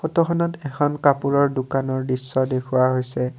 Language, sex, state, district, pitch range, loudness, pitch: Assamese, male, Assam, Kamrup Metropolitan, 130-145 Hz, -21 LUFS, 135 Hz